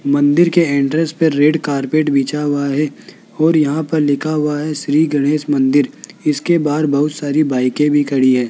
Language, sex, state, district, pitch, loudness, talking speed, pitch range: Hindi, male, Rajasthan, Jaipur, 150 Hz, -15 LUFS, 185 wpm, 140-155 Hz